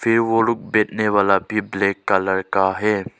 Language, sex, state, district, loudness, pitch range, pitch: Hindi, male, Arunachal Pradesh, Lower Dibang Valley, -19 LUFS, 95-110 Hz, 100 Hz